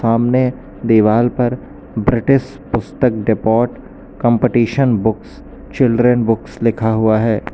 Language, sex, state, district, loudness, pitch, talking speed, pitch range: Hindi, male, Uttar Pradesh, Lucknow, -15 LUFS, 115 Hz, 105 wpm, 110-125 Hz